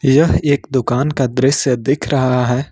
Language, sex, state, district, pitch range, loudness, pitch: Hindi, male, Jharkhand, Ranchi, 125-140 Hz, -15 LUFS, 135 Hz